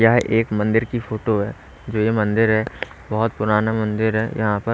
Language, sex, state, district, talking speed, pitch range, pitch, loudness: Hindi, male, Haryana, Rohtak, 205 wpm, 105-115 Hz, 110 Hz, -20 LUFS